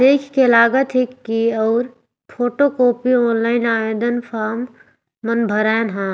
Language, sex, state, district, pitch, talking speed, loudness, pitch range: Sadri, female, Chhattisgarh, Jashpur, 235 Hz, 135 wpm, -17 LUFS, 225-250 Hz